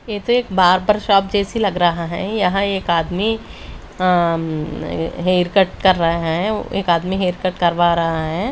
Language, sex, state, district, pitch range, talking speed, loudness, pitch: Hindi, female, Delhi, New Delhi, 170-200 Hz, 175 wpm, -18 LUFS, 185 Hz